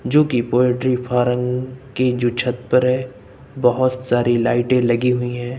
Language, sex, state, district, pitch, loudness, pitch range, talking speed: Hindi, male, Uttar Pradesh, Lucknow, 125 Hz, -18 LUFS, 120-130 Hz, 160 wpm